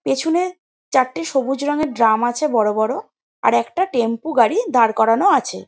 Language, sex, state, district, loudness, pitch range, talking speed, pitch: Bengali, female, West Bengal, Jalpaiguri, -18 LUFS, 225-305 Hz, 160 wpm, 255 Hz